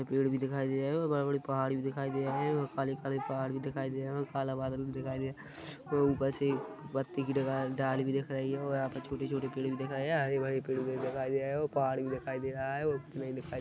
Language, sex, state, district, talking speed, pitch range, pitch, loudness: Hindi, male, Chhattisgarh, Rajnandgaon, 255 wpm, 135-140 Hz, 135 Hz, -34 LUFS